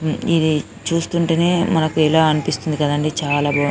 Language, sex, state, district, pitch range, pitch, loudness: Telugu, female, Telangana, Karimnagar, 145-165 Hz, 155 Hz, -18 LUFS